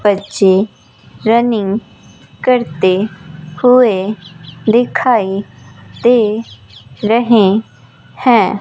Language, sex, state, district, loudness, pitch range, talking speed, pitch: Hindi, female, Rajasthan, Bikaner, -13 LUFS, 190-235 Hz, 55 wpm, 210 Hz